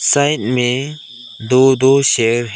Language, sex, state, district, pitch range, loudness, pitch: Hindi, male, Arunachal Pradesh, Lower Dibang Valley, 120-140 Hz, -14 LUFS, 130 Hz